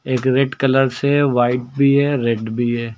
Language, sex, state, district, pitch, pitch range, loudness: Hindi, male, Uttar Pradesh, Lucknow, 130 Hz, 120-140 Hz, -17 LUFS